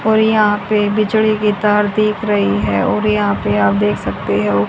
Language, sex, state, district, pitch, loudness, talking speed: Hindi, female, Haryana, Charkhi Dadri, 205 Hz, -15 LUFS, 215 wpm